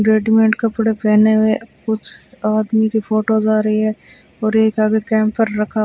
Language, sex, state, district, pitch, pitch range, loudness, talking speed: Hindi, female, Rajasthan, Bikaner, 220 Hz, 215-220 Hz, -16 LUFS, 165 wpm